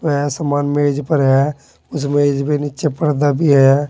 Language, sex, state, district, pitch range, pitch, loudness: Hindi, male, Uttar Pradesh, Saharanpur, 140-150 Hz, 145 Hz, -16 LUFS